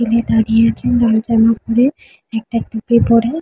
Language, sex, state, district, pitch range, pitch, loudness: Bengali, female, West Bengal, Jhargram, 225-235 Hz, 230 Hz, -14 LUFS